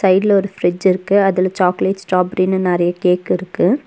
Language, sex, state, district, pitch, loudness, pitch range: Tamil, female, Tamil Nadu, Nilgiris, 185 Hz, -16 LUFS, 180-195 Hz